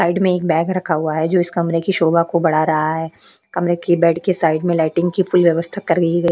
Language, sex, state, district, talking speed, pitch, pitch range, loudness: Hindi, female, Maharashtra, Aurangabad, 275 wpm, 170 Hz, 160-175 Hz, -17 LUFS